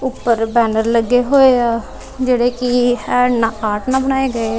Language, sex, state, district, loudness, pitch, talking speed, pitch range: Punjabi, female, Punjab, Kapurthala, -15 LUFS, 245 Hz, 185 wpm, 230-255 Hz